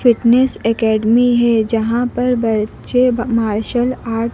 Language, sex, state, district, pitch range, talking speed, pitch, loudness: Hindi, female, Madhya Pradesh, Dhar, 225-245 Hz, 125 wpm, 235 Hz, -15 LUFS